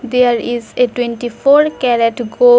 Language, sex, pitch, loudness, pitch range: English, female, 245 Hz, -14 LUFS, 235-250 Hz